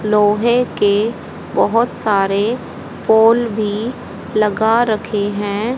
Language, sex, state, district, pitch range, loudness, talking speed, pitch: Hindi, female, Haryana, Rohtak, 205-230 Hz, -16 LUFS, 95 wpm, 215 Hz